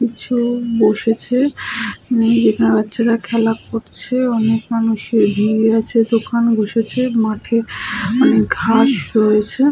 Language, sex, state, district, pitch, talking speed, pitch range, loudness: Bengali, female, West Bengal, Paschim Medinipur, 230 Hz, 95 wpm, 220-240 Hz, -16 LUFS